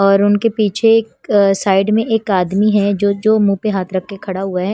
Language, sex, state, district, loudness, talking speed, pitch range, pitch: Hindi, female, Himachal Pradesh, Shimla, -15 LUFS, 240 wpm, 195-215 Hz, 200 Hz